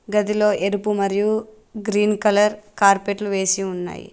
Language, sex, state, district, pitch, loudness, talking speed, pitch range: Telugu, female, Telangana, Mahabubabad, 205 Hz, -20 LUFS, 115 wpm, 200-210 Hz